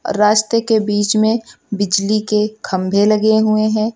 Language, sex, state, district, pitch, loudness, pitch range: Hindi, male, Uttar Pradesh, Lucknow, 215 Hz, -15 LUFS, 205-220 Hz